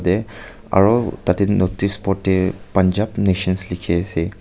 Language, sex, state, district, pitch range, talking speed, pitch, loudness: Nagamese, male, Nagaland, Kohima, 90-100 Hz, 135 wpm, 95 Hz, -18 LUFS